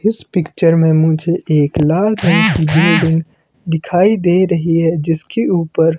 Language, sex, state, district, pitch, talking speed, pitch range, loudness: Hindi, male, Himachal Pradesh, Shimla, 165 Hz, 160 wpm, 160-180 Hz, -14 LUFS